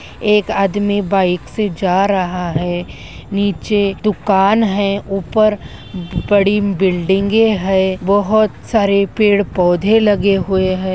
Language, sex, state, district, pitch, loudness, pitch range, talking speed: Hindi, female, Chhattisgarh, Raigarh, 200 Hz, -15 LUFS, 190-205 Hz, 110 wpm